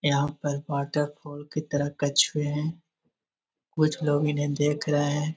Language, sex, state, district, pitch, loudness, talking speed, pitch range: Magahi, male, Bihar, Jahanabad, 145 Hz, -27 LUFS, 155 wpm, 145-150 Hz